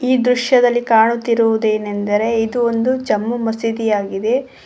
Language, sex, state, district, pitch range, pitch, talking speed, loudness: Kannada, female, Karnataka, Koppal, 220-245 Hz, 230 Hz, 105 wpm, -16 LUFS